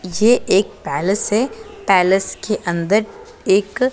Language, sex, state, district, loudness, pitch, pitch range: Hindi, female, Punjab, Pathankot, -17 LUFS, 205 Hz, 190-220 Hz